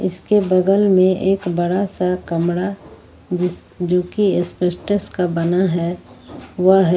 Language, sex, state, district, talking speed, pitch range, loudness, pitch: Hindi, female, Jharkhand, Ranchi, 130 wpm, 175-195 Hz, -18 LUFS, 180 Hz